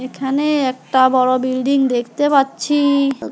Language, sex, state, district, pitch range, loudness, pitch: Bengali, female, West Bengal, Alipurduar, 255-280 Hz, -16 LUFS, 270 Hz